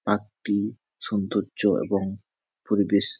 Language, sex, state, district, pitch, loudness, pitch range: Bengali, male, West Bengal, Jhargram, 100 Hz, -26 LUFS, 100-105 Hz